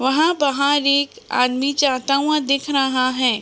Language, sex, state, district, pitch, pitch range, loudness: Hindi, female, Uttar Pradesh, Budaun, 275 Hz, 260-285 Hz, -18 LUFS